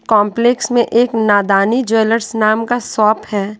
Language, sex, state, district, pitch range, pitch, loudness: Hindi, female, Bihar, West Champaran, 210-235 Hz, 220 Hz, -14 LUFS